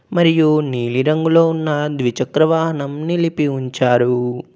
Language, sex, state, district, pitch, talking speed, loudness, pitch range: Telugu, male, Telangana, Komaram Bheem, 150 Hz, 105 wpm, -17 LUFS, 130-160 Hz